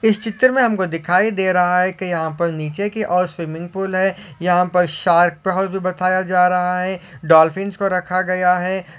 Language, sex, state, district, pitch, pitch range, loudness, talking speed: Hindi, male, Maharashtra, Solapur, 180 Hz, 175-190 Hz, -18 LUFS, 200 wpm